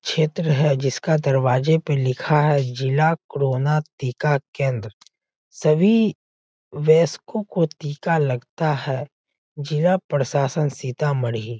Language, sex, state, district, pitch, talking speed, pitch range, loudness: Hindi, male, Bihar, Sitamarhi, 145 Hz, 105 wpm, 135-155 Hz, -21 LUFS